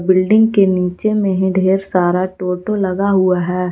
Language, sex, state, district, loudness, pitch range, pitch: Hindi, female, Jharkhand, Garhwa, -15 LUFS, 180-200 Hz, 185 Hz